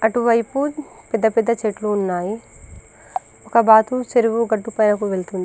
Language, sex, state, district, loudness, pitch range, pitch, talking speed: Telugu, female, Telangana, Karimnagar, -19 LUFS, 210-235 Hz, 225 Hz, 130 wpm